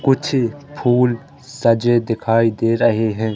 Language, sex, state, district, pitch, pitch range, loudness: Hindi, male, Madhya Pradesh, Katni, 120 Hz, 115-130 Hz, -17 LUFS